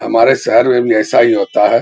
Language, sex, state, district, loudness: Hindi, male, Bihar, Bhagalpur, -11 LUFS